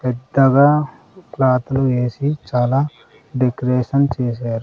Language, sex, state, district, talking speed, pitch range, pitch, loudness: Telugu, male, Andhra Pradesh, Sri Satya Sai, 80 wpm, 125-140 Hz, 130 Hz, -17 LUFS